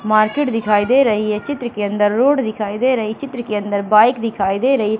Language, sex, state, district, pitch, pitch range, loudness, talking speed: Hindi, female, Madhya Pradesh, Katni, 220 Hz, 210-255 Hz, -17 LUFS, 225 wpm